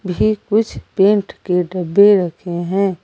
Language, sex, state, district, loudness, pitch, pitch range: Hindi, female, Jharkhand, Garhwa, -16 LUFS, 195 Hz, 180-205 Hz